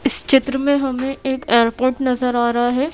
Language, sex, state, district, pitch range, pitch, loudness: Hindi, female, Madhya Pradesh, Bhopal, 245-270 Hz, 265 Hz, -17 LUFS